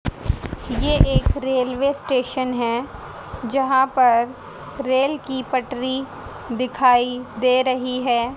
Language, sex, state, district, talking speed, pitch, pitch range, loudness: Hindi, female, Haryana, Charkhi Dadri, 100 wpm, 255 Hz, 250-265 Hz, -21 LUFS